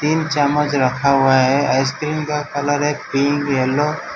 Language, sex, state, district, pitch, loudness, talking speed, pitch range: Hindi, male, Gujarat, Valsad, 145 Hz, -17 LUFS, 175 wpm, 135-150 Hz